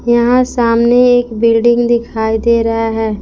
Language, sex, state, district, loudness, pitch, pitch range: Hindi, female, Jharkhand, Palamu, -12 LUFS, 235 Hz, 225-240 Hz